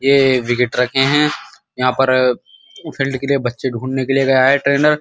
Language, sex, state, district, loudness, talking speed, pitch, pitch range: Hindi, male, Uttar Pradesh, Muzaffarnagar, -16 LUFS, 145 wpm, 135 Hz, 125-140 Hz